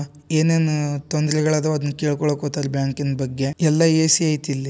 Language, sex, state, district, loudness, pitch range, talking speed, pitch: Kannada, male, Karnataka, Dharwad, -20 LUFS, 145-155 Hz, 140 wpm, 150 Hz